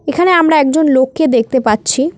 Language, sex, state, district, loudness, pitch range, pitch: Bengali, female, West Bengal, Cooch Behar, -12 LUFS, 260-315 Hz, 285 Hz